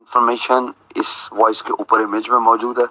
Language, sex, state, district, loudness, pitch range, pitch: Hindi, male, Uttar Pradesh, Jyotiba Phule Nagar, -17 LUFS, 120-125 Hz, 120 Hz